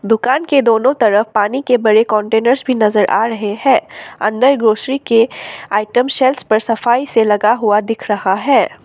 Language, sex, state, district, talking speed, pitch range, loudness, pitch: Hindi, female, Assam, Sonitpur, 175 wpm, 215-255 Hz, -14 LUFS, 225 Hz